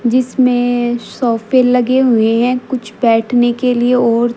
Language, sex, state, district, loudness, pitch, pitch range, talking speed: Hindi, female, Haryana, Jhajjar, -13 LUFS, 245 Hz, 235-250 Hz, 135 wpm